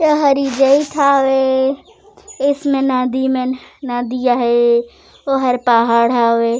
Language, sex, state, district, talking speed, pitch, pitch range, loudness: Chhattisgarhi, female, Chhattisgarh, Raigarh, 110 wpm, 265 Hz, 245-280 Hz, -15 LUFS